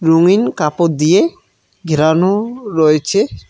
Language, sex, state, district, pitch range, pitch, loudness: Bengali, male, West Bengal, Cooch Behar, 155-200 Hz, 165 Hz, -14 LUFS